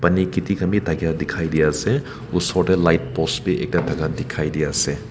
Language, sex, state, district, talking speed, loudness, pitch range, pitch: Nagamese, male, Nagaland, Kohima, 210 wpm, -21 LUFS, 75-90 Hz, 80 Hz